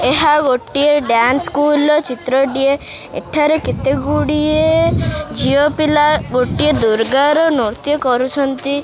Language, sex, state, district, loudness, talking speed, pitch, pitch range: Odia, male, Odisha, Khordha, -14 LUFS, 95 wpm, 285 Hz, 260-300 Hz